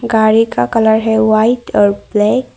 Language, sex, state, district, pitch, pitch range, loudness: Hindi, female, Arunachal Pradesh, Longding, 220 Hz, 210-225 Hz, -12 LUFS